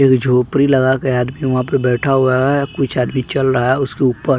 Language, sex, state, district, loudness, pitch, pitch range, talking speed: Hindi, male, Bihar, West Champaran, -15 LUFS, 130 Hz, 125-135 Hz, 235 wpm